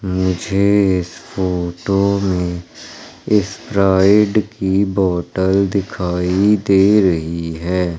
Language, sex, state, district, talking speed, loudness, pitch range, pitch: Hindi, male, Madhya Pradesh, Umaria, 85 wpm, -16 LUFS, 90-100 Hz, 95 Hz